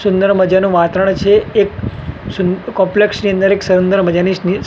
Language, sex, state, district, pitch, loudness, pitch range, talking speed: Gujarati, male, Gujarat, Gandhinagar, 190 Hz, -13 LUFS, 185-200 Hz, 165 wpm